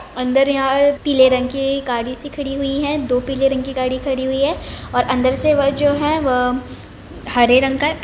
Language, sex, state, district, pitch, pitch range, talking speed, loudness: Hindi, female, Bihar, Begusarai, 270 Hz, 255-285 Hz, 195 wpm, -17 LUFS